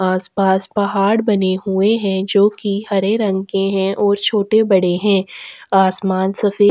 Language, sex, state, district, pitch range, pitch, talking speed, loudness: Hindi, female, Chhattisgarh, Sukma, 190-205 Hz, 195 Hz, 170 wpm, -16 LUFS